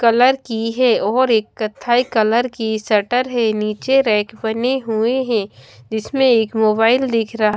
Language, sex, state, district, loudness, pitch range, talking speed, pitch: Hindi, female, Odisha, Khordha, -17 LUFS, 215-250 Hz, 165 wpm, 225 Hz